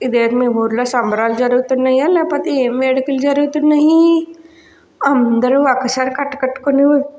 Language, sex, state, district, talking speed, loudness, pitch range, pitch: Telugu, female, Andhra Pradesh, Guntur, 110 wpm, -14 LUFS, 250-300 Hz, 270 Hz